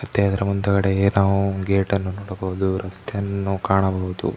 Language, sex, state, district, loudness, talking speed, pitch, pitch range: Kannada, male, Karnataka, Mysore, -22 LUFS, 150 wpm, 95 Hz, 95-100 Hz